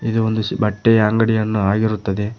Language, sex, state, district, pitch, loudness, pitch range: Kannada, male, Karnataka, Koppal, 110 Hz, -17 LUFS, 105-110 Hz